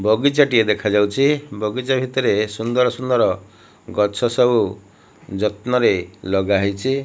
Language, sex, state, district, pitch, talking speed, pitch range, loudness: Odia, male, Odisha, Malkangiri, 110 Hz, 100 wpm, 105-130 Hz, -19 LUFS